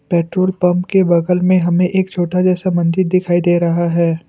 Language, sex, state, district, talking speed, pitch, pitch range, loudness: Hindi, male, Assam, Kamrup Metropolitan, 195 wpm, 180 Hz, 170-185 Hz, -15 LUFS